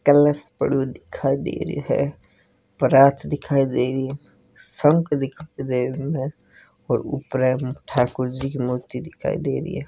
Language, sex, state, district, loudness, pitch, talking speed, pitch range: Hindi, male, Rajasthan, Nagaur, -22 LUFS, 135 Hz, 165 wpm, 125-145 Hz